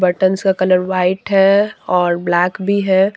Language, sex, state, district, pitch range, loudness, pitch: Hindi, female, Jharkhand, Deoghar, 180-195 Hz, -15 LUFS, 190 Hz